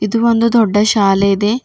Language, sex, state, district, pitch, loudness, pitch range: Kannada, female, Karnataka, Bidar, 215 Hz, -13 LUFS, 205-230 Hz